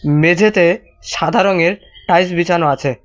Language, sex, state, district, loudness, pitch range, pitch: Bengali, male, West Bengal, Cooch Behar, -14 LUFS, 165-185 Hz, 175 Hz